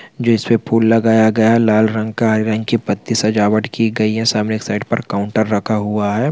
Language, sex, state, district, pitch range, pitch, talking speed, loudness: Hindi, male, Chhattisgarh, Bastar, 110-115 Hz, 110 Hz, 225 wpm, -16 LUFS